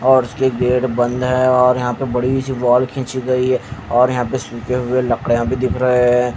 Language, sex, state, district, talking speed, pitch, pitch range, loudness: Hindi, male, Haryana, Jhajjar, 215 wpm, 125 Hz, 125-130 Hz, -17 LUFS